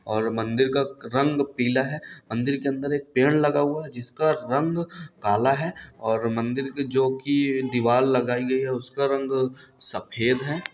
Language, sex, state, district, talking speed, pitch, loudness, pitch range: Hindi, male, Bihar, Samastipur, 175 wpm, 135 Hz, -24 LUFS, 125-140 Hz